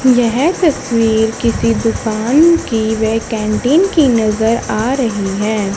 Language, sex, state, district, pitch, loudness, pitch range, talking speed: Hindi, female, Haryana, Charkhi Dadri, 225 Hz, -14 LUFS, 215-255 Hz, 125 wpm